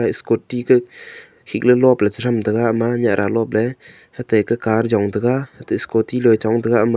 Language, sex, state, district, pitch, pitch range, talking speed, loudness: Wancho, male, Arunachal Pradesh, Longding, 115 Hz, 110-125 Hz, 180 wpm, -18 LUFS